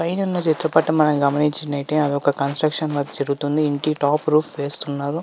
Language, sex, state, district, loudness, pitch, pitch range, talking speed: Telugu, male, Andhra Pradesh, Visakhapatnam, -20 LUFS, 150 Hz, 140-155 Hz, 150 wpm